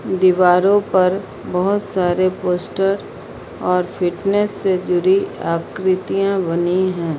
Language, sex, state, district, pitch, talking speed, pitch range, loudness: Hindi, female, Uttar Pradesh, Lucknow, 185 Hz, 100 wpm, 180-195 Hz, -18 LUFS